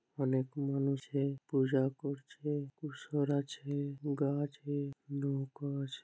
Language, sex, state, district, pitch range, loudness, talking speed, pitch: Bengali, male, West Bengal, Malda, 140-145 Hz, -36 LUFS, 60 wpm, 140 Hz